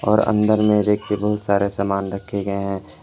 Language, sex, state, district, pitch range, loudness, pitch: Hindi, male, Jharkhand, Palamu, 100-105 Hz, -20 LUFS, 100 Hz